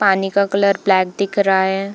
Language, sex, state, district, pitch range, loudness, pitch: Hindi, female, Bihar, Darbhanga, 190-200 Hz, -16 LUFS, 195 Hz